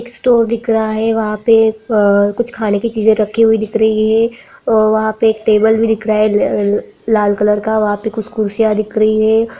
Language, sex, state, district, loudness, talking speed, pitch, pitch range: Hindi, female, Bihar, Jamui, -14 LUFS, 235 wpm, 220 Hz, 215-225 Hz